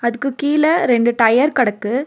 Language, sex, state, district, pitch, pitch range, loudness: Tamil, female, Tamil Nadu, Nilgiris, 245 Hz, 235-285 Hz, -15 LUFS